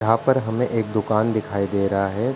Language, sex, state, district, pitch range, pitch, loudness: Hindi, male, Uttar Pradesh, Ghazipur, 100-115 Hz, 110 Hz, -22 LUFS